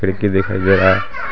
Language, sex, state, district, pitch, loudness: Hindi, male, Jharkhand, Garhwa, 95 Hz, -15 LUFS